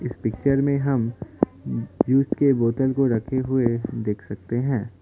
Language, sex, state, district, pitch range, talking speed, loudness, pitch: Hindi, male, Assam, Kamrup Metropolitan, 115-135 Hz, 145 wpm, -23 LUFS, 125 Hz